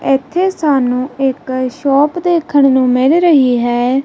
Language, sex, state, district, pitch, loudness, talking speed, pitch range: Punjabi, female, Punjab, Kapurthala, 270 Hz, -13 LUFS, 135 wpm, 255-300 Hz